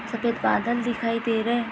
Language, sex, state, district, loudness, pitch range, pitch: Hindi, female, Goa, North and South Goa, -25 LUFS, 230-235 Hz, 230 Hz